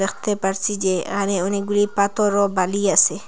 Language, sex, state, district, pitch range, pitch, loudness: Bengali, female, Assam, Hailakandi, 195-205 Hz, 200 Hz, -20 LUFS